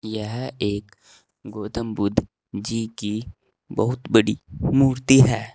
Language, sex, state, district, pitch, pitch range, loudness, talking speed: Hindi, male, Uttar Pradesh, Saharanpur, 110 Hz, 105-125 Hz, -22 LUFS, 110 wpm